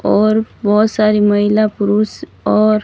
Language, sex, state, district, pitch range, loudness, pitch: Hindi, female, Rajasthan, Barmer, 205-215 Hz, -14 LUFS, 215 Hz